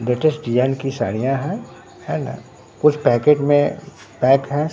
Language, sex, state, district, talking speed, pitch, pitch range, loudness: Hindi, male, Bihar, Katihar, 150 wpm, 135 Hz, 125-150 Hz, -19 LUFS